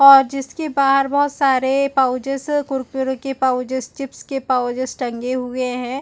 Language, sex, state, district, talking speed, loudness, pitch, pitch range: Hindi, female, Chhattisgarh, Bilaspur, 160 wpm, -19 LUFS, 270 Hz, 255-275 Hz